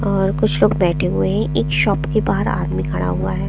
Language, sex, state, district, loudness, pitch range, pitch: Hindi, female, Chandigarh, Chandigarh, -18 LUFS, 155-180 Hz, 165 Hz